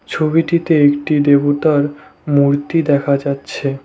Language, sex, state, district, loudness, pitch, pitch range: Bengali, male, West Bengal, Cooch Behar, -15 LUFS, 145 Hz, 140-155 Hz